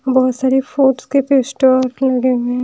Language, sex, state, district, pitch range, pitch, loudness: Hindi, female, Haryana, Rohtak, 255-270 Hz, 260 Hz, -15 LUFS